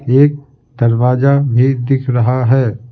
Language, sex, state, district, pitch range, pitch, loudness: Hindi, male, Bihar, Patna, 125-135 Hz, 130 Hz, -13 LUFS